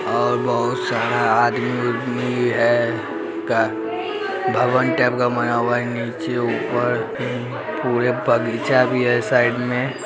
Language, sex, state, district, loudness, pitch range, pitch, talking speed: Hindi, male, Bihar, Araria, -20 LUFS, 115-125 Hz, 120 Hz, 130 wpm